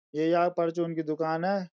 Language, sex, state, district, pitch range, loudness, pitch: Garhwali, male, Uttarakhand, Uttarkashi, 160-175 Hz, -28 LUFS, 170 Hz